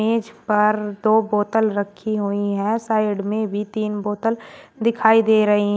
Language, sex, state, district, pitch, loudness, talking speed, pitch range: Hindi, male, Uttar Pradesh, Shamli, 215 Hz, -20 LUFS, 165 wpm, 205-220 Hz